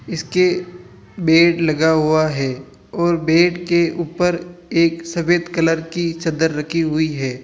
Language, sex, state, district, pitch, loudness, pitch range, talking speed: Hindi, male, Rajasthan, Jaipur, 165 Hz, -18 LUFS, 155-170 Hz, 135 wpm